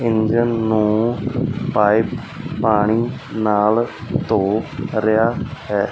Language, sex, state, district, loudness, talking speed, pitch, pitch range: Punjabi, male, Punjab, Fazilka, -19 LUFS, 80 wpm, 110 Hz, 105-115 Hz